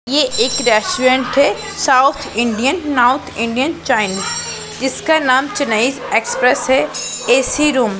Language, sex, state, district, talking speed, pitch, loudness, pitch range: Hindi, female, Punjab, Pathankot, 120 wpm, 265 Hz, -15 LUFS, 245-285 Hz